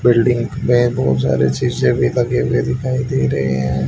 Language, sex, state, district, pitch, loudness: Hindi, male, Haryana, Rohtak, 115 Hz, -17 LUFS